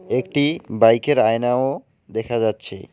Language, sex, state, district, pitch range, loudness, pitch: Bengali, male, West Bengal, Alipurduar, 115-145 Hz, -19 LUFS, 125 Hz